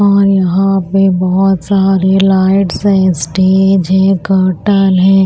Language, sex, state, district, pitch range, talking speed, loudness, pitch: Hindi, female, Maharashtra, Washim, 185-195 Hz, 125 wpm, -10 LUFS, 190 Hz